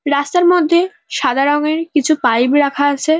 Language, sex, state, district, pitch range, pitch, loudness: Bengali, female, West Bengal, North 24 Parganas, 285-330 Hz, 300 Hz, -14 LUFS